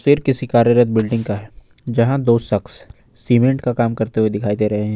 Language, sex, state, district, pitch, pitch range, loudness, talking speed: Hindi, male, Jharkhand, Ranchi, 115 Hz, 105-120 Hz, -17 LUFS, 220 wpm